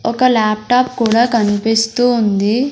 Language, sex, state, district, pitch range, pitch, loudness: Telugu, female, Andhra Pradesh, Sri Satya Sai, 215-245 Hz, 230 Hz, -14 LUFS